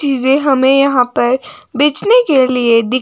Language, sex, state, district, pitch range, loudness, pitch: Hindi, female, Himachal Pradesh, Shimla, 255-290 Hz, -12 LUFS, 270 Hz